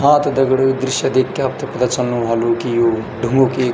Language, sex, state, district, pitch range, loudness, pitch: Garhwali, male, Uttarakhand, Tehri Garhwal, 120-135 Hz, -17 LUFS, 130 Hz